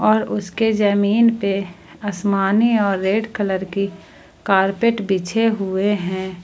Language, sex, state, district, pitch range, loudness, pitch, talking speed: Hindi, female, Jharkhand, Palamu, 190-215 Hz, -19 LUFS, 195 Hz, 120 wpm